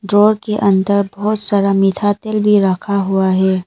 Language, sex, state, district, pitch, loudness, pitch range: Hindi, female, Arunachal Pradesh, Lower Dibang Valley, 200 Hz, -14 LUFS, 195-210 Hz